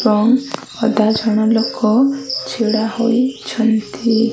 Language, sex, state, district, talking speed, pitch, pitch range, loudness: Odia, female, Odisha, Malkangiri, 85 wpm, 230 Hz, 220-250 Hz, -16 LUFS